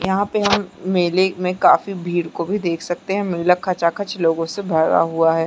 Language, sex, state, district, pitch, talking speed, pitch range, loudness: Hindi, female, Chhattisgarh, Bastar, 180 Hz, 210 wpm, 170-195 Hz, -19 LUFS